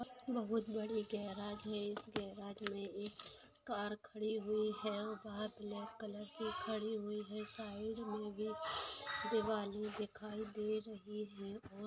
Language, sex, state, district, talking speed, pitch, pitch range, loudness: Hindi, female, Maharashtra, Dhule, 120 wpm, 215 Hz, 210-220 Hz, -43 LUFS